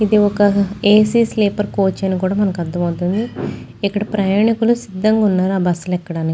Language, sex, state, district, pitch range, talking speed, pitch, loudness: Telugu, female, Andhra Pradesh, Chittoor, 185-215 Hz, 170 wpm, 200 Hz, -17 LUFS